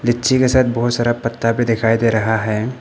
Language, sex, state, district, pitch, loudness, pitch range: Hindi, male, Arunachal Pradesh, Papum Pare, 115 Hz, -16 LUFS, 115-120 Hz